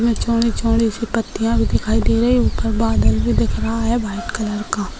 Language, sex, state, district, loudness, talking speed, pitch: Hindi, female, Bihar, Sitamarhi, -19 LUFS, 225 wpm, 220 Hz